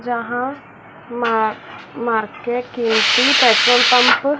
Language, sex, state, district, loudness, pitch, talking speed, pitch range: Hindi, female, Madhya Pradesh, Dhar, -15 LUFS, 240 Hz, 80 wpm, 230-250 Hz